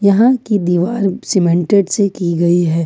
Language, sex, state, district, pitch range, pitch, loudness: Hindi, female, Jharkhand, Ranchi, 175-205 Hz, 190 Hz, -14 LUFS